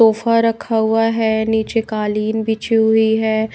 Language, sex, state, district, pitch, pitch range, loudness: Hindi, female, Haryana, Rohtak, 220 Hz, 220-225 Hz, -16 LUFS